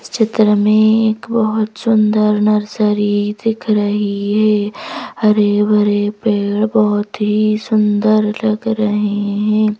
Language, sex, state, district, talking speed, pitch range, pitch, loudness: Hindi, female, Madhya Pradesh, Bhopal, 115 wpm, 210-215 Hz, 210 Hz, -15 LUFS